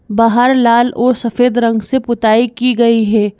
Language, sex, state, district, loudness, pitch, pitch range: Hindi, female, Madhya Pradesh, Bhopal, -12 LUFS, 235 Hz, 225-245 Hz